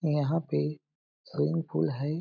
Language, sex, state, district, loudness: Hindi, male, Chhattisgarh, Balrampur, -30 LUFS